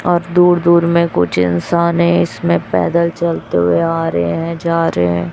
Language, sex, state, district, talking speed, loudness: Hindi, male, Chhattisgarh, Raipur, 190 wpm, -14 LUFS